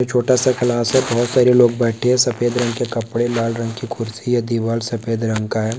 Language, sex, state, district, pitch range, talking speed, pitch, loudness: Hindi, male, Uttar Pradesh, Varanasi, 115-125 Hz, 250 wpm, 120 Hz, -18 LUFS